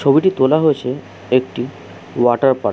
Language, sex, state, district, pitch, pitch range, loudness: Bengali, male, West Bengal, Jhargram, 130 Hz, 105-140 Hz, -16 LUFS